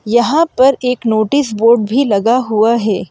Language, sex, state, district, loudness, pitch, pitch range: Hindi, female, Madhya Pradesh, Bhopal, -13 LUFS, 235 Hz, 215-255 Hz